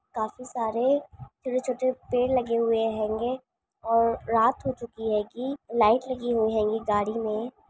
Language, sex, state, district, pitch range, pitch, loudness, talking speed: Hindi, female, Chhattisgarh, Bastar, 220-255 Hz, 230 Hz, -26 LUFS, 165 wpm